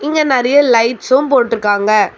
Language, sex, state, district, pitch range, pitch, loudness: Tamil, female, Tamil Nadu, Chennai, 220-280 Hz, 250 Hz, -12 LUFS